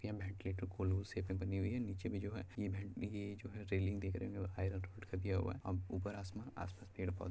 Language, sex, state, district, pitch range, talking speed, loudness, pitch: Hindi, male, Bihar, Purnia, 95-100 Hz, 155 wpm, -43 LUFS, 95 Hz